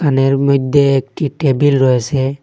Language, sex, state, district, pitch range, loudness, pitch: Bengali, male, Assam, Hailakandi, 135-140 Hz, -14 LUFS, 135 Hz